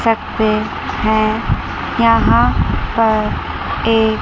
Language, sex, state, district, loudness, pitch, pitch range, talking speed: Hindi, female, Chandigarh, Chandigarh, -16 LUFS, 220 Hz, 215-225 Hz, 70 wpm